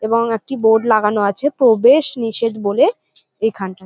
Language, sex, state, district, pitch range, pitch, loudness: Bengali, female, West Bengal, North 24 Parganas, 215-240 Hz, 225 Hz, -16 LUFS